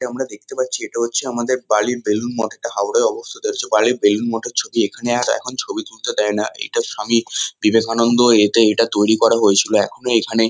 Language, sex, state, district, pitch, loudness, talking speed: Bengali, male, West Bengal, Kolkata, 120 Hz, -18 LUFS, 200 wpm